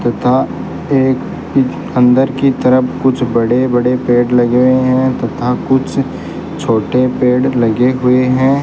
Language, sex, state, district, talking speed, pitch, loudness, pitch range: Hindi, male, Rajasthan, Bikaner, 140 wpm, 125 Hz, -13 LUFS, 125-130 Hz